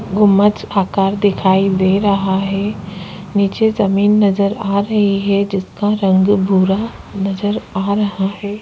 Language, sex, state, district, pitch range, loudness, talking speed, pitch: Hindi, female, Chhattisgarh, Korba, 195-205 Hz, -15 LUFS, 130 wpm, 200 Hz